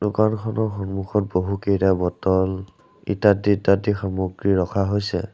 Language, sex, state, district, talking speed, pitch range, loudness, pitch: Assamese, male, Assam, Sonitpur, 100 wpm, 95-105 Hz, -21 LUFS, 100 Hz